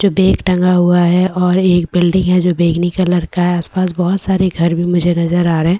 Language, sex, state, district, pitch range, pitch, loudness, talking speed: Hindi, female, Bihar, Katihar, 175-185 Hz, 180 Hz, -13 LUFS, 250 wpm